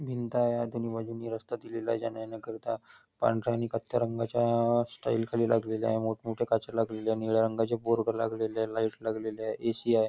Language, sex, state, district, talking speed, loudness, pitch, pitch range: Marathi, male, Maharashtra, Nagpur, 185 wpm, -31 LUFS, 115 Hz, 110-115 Hz